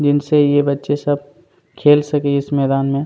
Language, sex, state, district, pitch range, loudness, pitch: Hindi, male, Chhattisgarh, Kabirdham, 140-145 Hz, -16 LUFS, 145 Hz